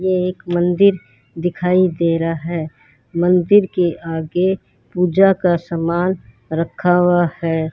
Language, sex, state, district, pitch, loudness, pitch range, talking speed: Hindi, male, Rajasthan, Bikaner, 175 Hz, -17 LUFS, 165-180 Hz, 115 wpm